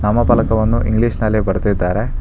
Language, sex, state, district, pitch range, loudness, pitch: Kannada, male, Karnataka, Bangalore, 105-115 Hz, -16 LUFS, 110 Hz